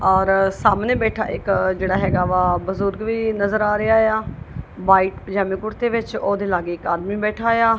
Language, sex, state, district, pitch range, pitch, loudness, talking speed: Punjabi, female, Punjab, Kapurthala, 190-220 Hz, 200 Hz, -20 LUFS, 175 wpm